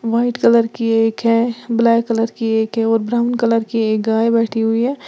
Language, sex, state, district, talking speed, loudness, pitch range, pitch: Hindi, female, Uttar Pradesh, Lalitpur, 225 wpm, -16 LUFS, 225-235 Hz, 230 Hz